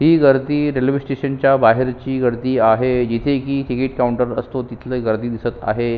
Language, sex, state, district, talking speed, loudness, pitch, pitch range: Marathi, male, Maharashtra, Sindhudurg, 170 wpm, -18 LUFS, 130 Hz, 120-135 Hz